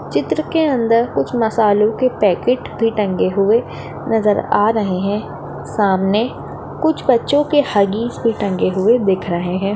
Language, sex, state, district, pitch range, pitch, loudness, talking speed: Hindi, female, Maharashtra, Dhule, 195-235 Hz, 215 Hz, -17 LUFS, 155 wpm